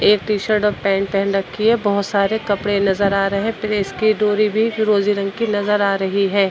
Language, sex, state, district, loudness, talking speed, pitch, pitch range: Hindi, female, Uttar Pradesh, Budaun, -18 LUFS, 230 wpm, 205 Hz, 195-215 Hz